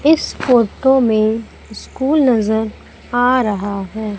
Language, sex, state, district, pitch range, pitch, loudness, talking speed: Hindi, female, Madhya Pradesh, Umaria, 215-260 Hz, 230 Hz, -16 LUFS, 115 wpm